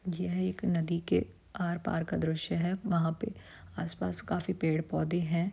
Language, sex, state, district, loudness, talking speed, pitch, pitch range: Hindi, female, Bihar, Saran, -32 LUFS, 150 wpm, 170 Hz, 155-180 Hz